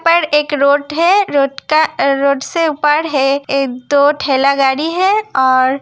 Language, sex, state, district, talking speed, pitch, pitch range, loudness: Hindi, female, Uttar Pradesh, Hamirpur, 165 wpm, 285 Hz, 275-315 Hz, -13 LUFS